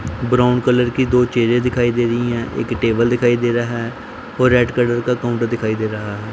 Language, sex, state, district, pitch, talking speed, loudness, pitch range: Hindi, male, Punjab, Pathankot, 120 Hz, 220 wpm, -17 LUFS, 115-125 Hz